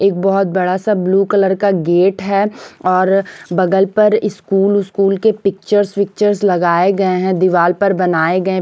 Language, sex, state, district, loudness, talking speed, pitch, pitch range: Hindi, female, Punjab, Pathankot, -14 LUFS, 175 wpm, 195 Hz, 185-200 Hz